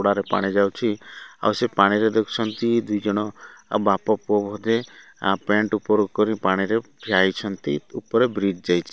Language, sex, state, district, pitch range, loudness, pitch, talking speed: Odia, male, Odisha, Malkangiri, 100-110 Hz, -22 LUFS, 105 Hz, 115 wpm